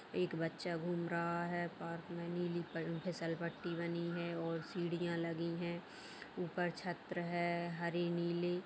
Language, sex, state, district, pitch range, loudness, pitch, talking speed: Hindi, female, Bihar, Madhepura, 170-175 Hz, -41 LUFS, 170 Hz, 145 wpm